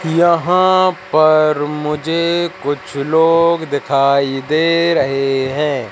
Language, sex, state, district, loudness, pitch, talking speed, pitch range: Hindi, male, Madhya Pradesh, Katni, -15 LUFS, 155 Hz, 90 wpm, 140-170 Hz